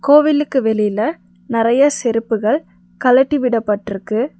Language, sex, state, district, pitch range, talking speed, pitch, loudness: Tamil, female, Tamil Nadu, Nilgiris, 210-270 Hz, 80 wpm, 230 Hz, -16 LUFS